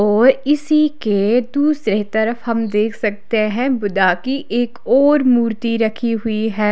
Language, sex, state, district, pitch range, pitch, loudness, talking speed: Hindi, female, Odisha, Khordha, 215-260 Hz, 230 Hz, -17 LUFS, 150 wpm